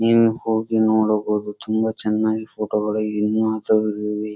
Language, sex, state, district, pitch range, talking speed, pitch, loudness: Kannada, male, Karnataka, Dharwad, 105-110 Hz, 110 wpm, 110 Hz, -21 LUFS